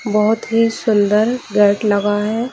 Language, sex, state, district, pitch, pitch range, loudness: Hindi, female, Bihar, Jahanabad, 215 Hz, 205-230 Hz, -16 LUFS